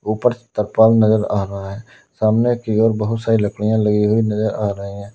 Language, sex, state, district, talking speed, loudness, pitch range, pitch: Hindi, male, Uttar Pradesh, Lalitpur, 210 wpm, -17 LUFS, 105-110 Hz, 110 Hz